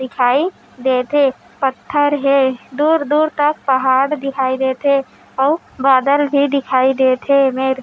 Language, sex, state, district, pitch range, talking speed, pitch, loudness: Chhattisgarhi, female, Chhattisgarh, Raigarh, 260-290 Hz, 145 wpm, 270 Hz, -16 LUFS